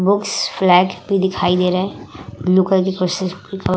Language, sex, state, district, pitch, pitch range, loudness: Hindi, female, Uttar Pradesh, Hamirpur, 185 Hz, 180-190 Hz, -17 LUFS